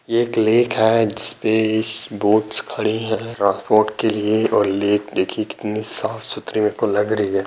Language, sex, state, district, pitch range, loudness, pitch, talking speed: Hindi, male, Bihar, Begusarai, 105-110 Hz, -19 LUFS, 110 Hz, 175 wpm